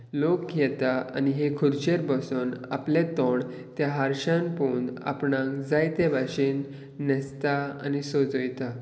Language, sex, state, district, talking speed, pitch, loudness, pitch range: Konkani, male, Goa, North and South Goa, 120 wpm, 140 Hz, -27 LUFS, 130-145 Hz